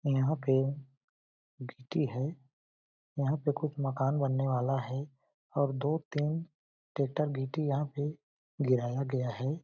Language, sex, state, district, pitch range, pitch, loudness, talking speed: Hindi, male, Chhattisgarh, Balrampur, 135-145 Hz, 140 Hz, -33 LUFS, 135 wpm